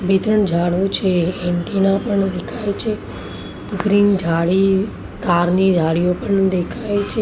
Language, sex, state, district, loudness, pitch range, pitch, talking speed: Gujarati, female, Maharashtra, Mumbai Suburban, -18 LUFS, 175-200 Hz, 190 Hz, 135 wpm